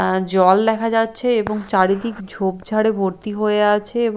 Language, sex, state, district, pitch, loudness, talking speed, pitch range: Bengali, female, Chhattisgarh, Raipur, 210 Hz, -18 LUFS, 160 wpm, 190-225 Hz